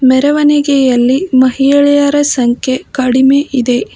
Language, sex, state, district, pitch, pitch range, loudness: Kannada, female, Karnataka, Bangalore, 265 Hz, 255-285 Hz, -10 LUFS